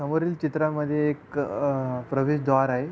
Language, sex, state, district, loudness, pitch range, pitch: Marathi, male, Maharashtra, Pune, -25 LUFS, 135-150 Hz, 145 Hz